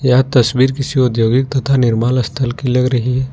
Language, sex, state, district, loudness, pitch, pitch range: Hindi, male, Jharkhand, Ranchi, -14 LUFS, 125 Hz, 125-130 Hz